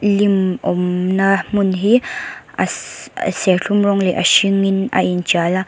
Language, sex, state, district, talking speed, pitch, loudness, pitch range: Mizo, female, Mizoram, Aizawl, 135 wpm, 195 Hz, -16 LUFS, 185-200 Hz